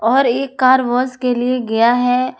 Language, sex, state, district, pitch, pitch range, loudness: Hindi, female, Jharkhand, Ranchi, 250 Hz, 240-255 Hz, -15 LUFS